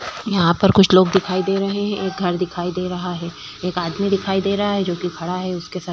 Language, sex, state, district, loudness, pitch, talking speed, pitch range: Hindi, female, Chhattisgarh, Korba, -19 LUFS, 185 Hz, 265 wpm, 180-195 Hz